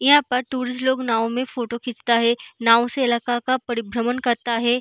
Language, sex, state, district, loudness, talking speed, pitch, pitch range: Hindi, female, Bihar, East Champaran, -21 LUFS, 200 wpm, 240 Hz, 235-255 Hz